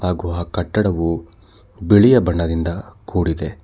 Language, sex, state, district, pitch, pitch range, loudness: Kannada, male, Karnataka, Bangalore, 90 Hz, 85-105 Hz, -18 LUFS